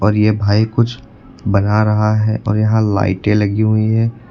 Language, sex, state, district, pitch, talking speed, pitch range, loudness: Hindi, male, Uttar Pradesh, Lucknow, 110 Hz, 180 wpm, 105-110 Hz, -15 LUFS